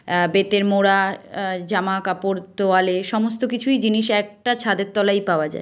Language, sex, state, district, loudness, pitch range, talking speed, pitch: Bengali, female, West Bengal, Kolkata, -20 LUFS, 190-210 Hz, 170 wpm, 200 Hz